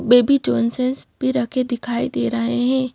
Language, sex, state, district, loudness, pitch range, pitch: Hindi, female, Madhya Pradesh, Bhopal, -20 LUFS, 235-260 Hz, 245 Hz